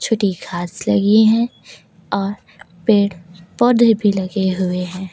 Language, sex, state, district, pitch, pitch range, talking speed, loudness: Hindi, female, Uttar Pradesh, Lucknow, 195 Hz, 180-215 Hz, 130 wpm, -17 LUFS